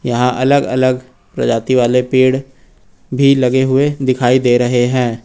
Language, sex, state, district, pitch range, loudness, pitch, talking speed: Hindi, male, Uttar Pradesh, Lucknow, 125-130 Hz, -13 LUFS, 130 Hz, 150 wpm